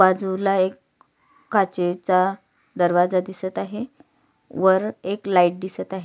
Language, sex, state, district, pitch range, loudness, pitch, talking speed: Marathi, female, Maharashtra, Sindhudurg, 185-200 Hz, -22 LUFS, 190 Hz, 110 wpm